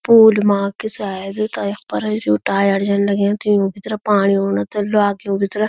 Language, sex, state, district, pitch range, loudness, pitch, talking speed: Garhwali, female, Uttarakhand, Uttarkashi, 195-210 Hz, -17 LUFS, 200 Hz, 200 wpm